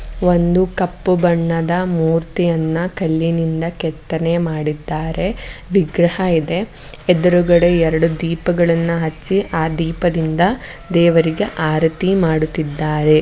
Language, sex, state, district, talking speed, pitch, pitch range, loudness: Kannada, female, Karnataka, Mysore, 80 wpm, 165 Hz, 160-175 Hz, -17 LUFS